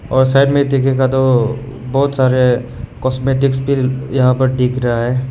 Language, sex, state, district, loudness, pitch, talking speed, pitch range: Hindi, male, Meghalaya, West Garo Hills, -15 LUFS, 130 Hz, 160 wpm, 125-135 Hz